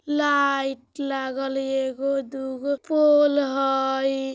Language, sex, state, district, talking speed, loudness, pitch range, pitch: Bajjika, female, Bihar, Vaishali, 110 wpm, -23 LUFS, 270-285 Hz, 270 Hz